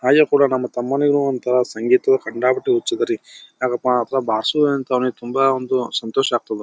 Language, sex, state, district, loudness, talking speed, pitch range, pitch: Kannada, male, Karnataka, Bijapur, -19 LUFS, 170 wpm, 125-145 Hz, 130 Hz